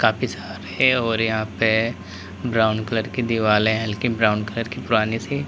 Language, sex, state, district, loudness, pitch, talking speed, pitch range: Hindi, male, Uttar Pradesh, Lalitpur, -21 LUFS, 110 Hz, 175 wpm, 105-115 Hz